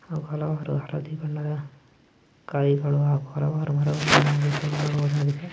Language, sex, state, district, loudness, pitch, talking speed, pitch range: Kannada, male, Karnataka, Belgaum, -25 LUFS, 150 Hz, 75 wpm, 145-150 Hz